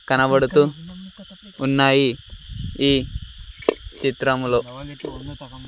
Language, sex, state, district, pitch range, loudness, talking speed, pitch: Telugu, male, Andhra Pradesh, Sri Satya Sai, 125-145 Hz, -19 LUFS, 40 wpm, 135 Hz